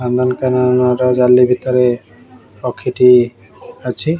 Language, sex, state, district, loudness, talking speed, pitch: Odia, male, Odisha, Khordha, -13 LUFS, 85 wpm, 125 Hz